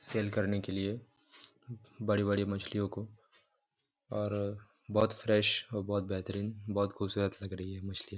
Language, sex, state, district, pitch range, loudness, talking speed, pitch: Hindi, male, Jharkhand, Jamtara, 100-105 Hz, -34 LUFS, 130 wpm, 100 Hz